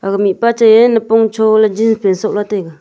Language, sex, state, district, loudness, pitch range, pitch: Wancho, female, Arunachal Pradesh, Longding, -12 LUFS, 200-225 Hz, 215 Hz